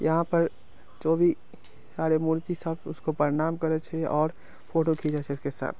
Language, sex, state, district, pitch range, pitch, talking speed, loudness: Maithili, male, Bihar, Samastipur, 150-165 Hz, 160 Hz, 175 wpm, -28 LUFS